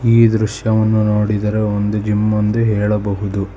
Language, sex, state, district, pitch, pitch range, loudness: Kannada, male, Karnataka, Bangalore, 105 Hz, 105-110 Hz, -16 LUFS